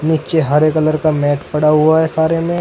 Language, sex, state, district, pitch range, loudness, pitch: Hindi, male, Uttar Pradesh, Saharanpur, 150-160 Hz, -14 LUFS, 155 Hz